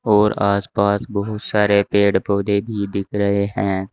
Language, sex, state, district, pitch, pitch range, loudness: Hindi, male, Uttar Pradesh, Saharanpur, 100 Hz, 100-105 Hz, -19 LUFS